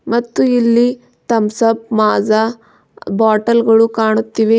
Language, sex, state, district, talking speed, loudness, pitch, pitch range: Kannada, female, Karnataka, Bidar, 105 wpm, -14 LUFS, 225 Hz, 220-235 Hz